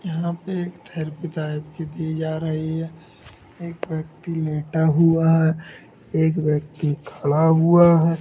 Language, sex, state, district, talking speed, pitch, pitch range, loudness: Hindi, male, Jharkhand, Jamtara, 145 wpm, 160 Hz, 155-165 Hz, -21 LUFS